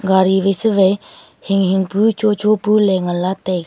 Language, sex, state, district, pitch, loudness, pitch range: Wancho, female, Arunachal Pradesh, Longding, 195 Hz, -16 LUFS, 190-210 Hz